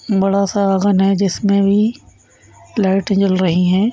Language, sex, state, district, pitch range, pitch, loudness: Hindi, female, Maharashtra, Nagpur, 195-200 Hz, 195 Hz, -15 LUFS